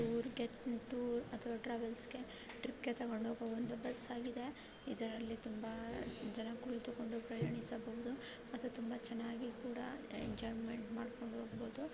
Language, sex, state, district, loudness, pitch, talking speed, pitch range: Kannada, female, Karnataka, Raichur, -45 LUFS, 235 Hz, 115 wpm, 230-245 Hz